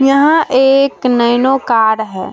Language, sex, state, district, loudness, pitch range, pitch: Hindi, female, Bihar, Kishanganj, -12 LUFS, 235-270 Hz, 260 Hz